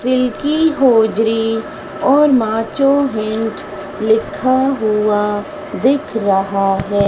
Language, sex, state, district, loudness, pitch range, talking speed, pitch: Hindi, female, Madhya Pradesh, Dhar, -15 LUFS, 215-270 Hz, 85 wpm, 225 Hz